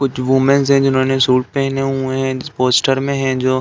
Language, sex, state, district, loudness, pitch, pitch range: Hindi, male, Uttar Pradesh, Deoria, -15 LUFS, 135 Hz, 130-135 Hz